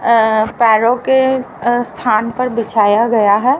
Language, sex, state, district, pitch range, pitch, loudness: Hindi, female, Haryana, Rohtak, 220-250 Hz, 230 Hz, -13 LUFS